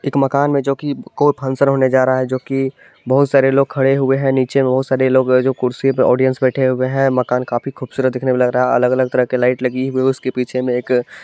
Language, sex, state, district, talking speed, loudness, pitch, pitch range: Hindi, male, Bihar, Supaul, 255 wpm, -16 LUFS, 130 Hz, 125-135 Hz